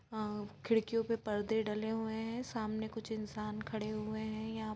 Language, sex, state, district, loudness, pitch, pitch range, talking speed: Hindi, female, Bihar, Sitamarhi, -38 LUFS, 220 Hz, 215-225 Hz, 175 wpm